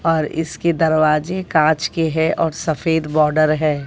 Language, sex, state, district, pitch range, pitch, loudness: Hindi, female, Bihar, West Champaran, 155-165 Hz, 160 Hz, -18 LUFS